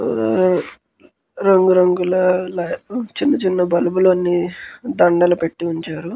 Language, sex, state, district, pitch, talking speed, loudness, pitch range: Telugu, male, Andhra Pradesh, Krishna, 180 Hz, 80 wpm, -17 LUFS, 175-185 Hz